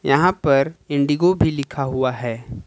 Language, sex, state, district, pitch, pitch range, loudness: Hindi, male, Jharkhand, Ranchi, 140 Hz, 130-150 Hz, -19 LUFS